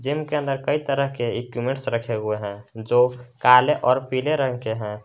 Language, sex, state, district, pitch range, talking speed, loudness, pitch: Hindi, male, Jharkhand, Garhwa, 115-135 Hz, 200 wpm, -22 LUFS, 125 Hz